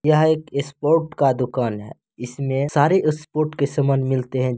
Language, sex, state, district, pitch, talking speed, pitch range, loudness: Angika, male, Bihar, Begusarai, 140 Hz, 195 wpm, 130-155 Hz, -20 LUFS